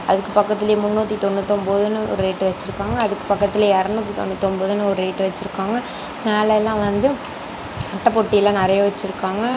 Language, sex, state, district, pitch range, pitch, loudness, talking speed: Tamil, female, Tamil Nadu, Namakkal, 195-215 Hz, 205 Hz, -20 LUFS, 140 wpm